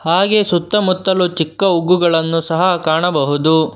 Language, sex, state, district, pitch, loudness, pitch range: Kannada, male, Karnataka, Bangalore, 175 Hz, -15 LUFS, 160-185 Hz